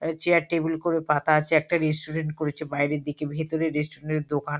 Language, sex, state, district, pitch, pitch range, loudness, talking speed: Bengali, female, West Bengal, Kolkata, 155 Hz, 150-160 Hz, -25 LUFS, 180 wpm